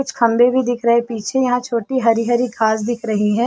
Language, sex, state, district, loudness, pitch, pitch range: Hindi, female, Chhattisgarh, Bastar, -17 LUFS, 235 Hz, 230-245 Hz